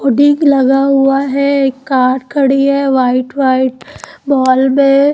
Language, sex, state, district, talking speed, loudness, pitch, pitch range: Hindi, female, Chandigarh, Chandigarh, 115 wpm, -11 LUFS, 270 Hz, 260-280 Hz